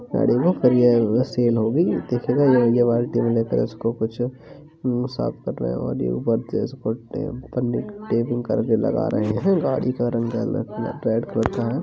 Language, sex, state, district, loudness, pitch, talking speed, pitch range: Hindi, male, Uttar Pradesh, Jalaun, -22 LUFS, 120 Hz, 125 wpm, 115-125 Hz